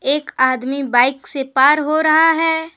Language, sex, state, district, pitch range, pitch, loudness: Hindi, female, Jharkhand, Deoghar, 265-315 Hz, 280 Hz, -15 LUFS